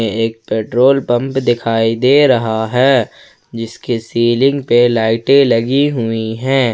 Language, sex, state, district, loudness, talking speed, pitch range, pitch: Hindi, male, Jharkhand, Ranchi, -13 LUFS, 125 wpm, 115-135 Hz, 120 Hz